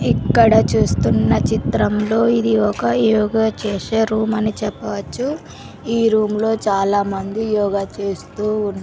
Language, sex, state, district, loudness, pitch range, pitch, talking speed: Telugu, female, Andhra Pradesh, Sri Satya Sai, -18 LUFS, 205-220 Hz, 215 Hz, 115 wpm